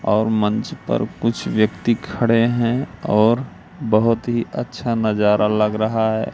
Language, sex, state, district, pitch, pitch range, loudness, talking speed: Hindi, male, Madhya Pradesh, Katni, 110 Hz, 105-115 Hz, -19 LUFS, 140 wpm